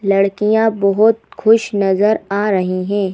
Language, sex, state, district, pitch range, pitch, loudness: Hindi, female, Madhya Pradesh, Bhopal, 195-220 Hz, 205 Hz, -15 LUFS